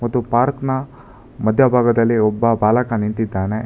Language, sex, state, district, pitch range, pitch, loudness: Kannada, male, Karnataka, Bangalore, 110-125 Hz, 115 Hz, -17 LUFS